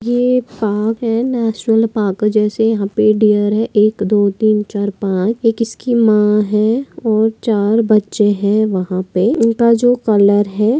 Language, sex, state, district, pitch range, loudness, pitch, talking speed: Hindi, female, Maharashtra, Pune, 205-230 Hz, -14 LUFS, 215 Hz, 165 wpm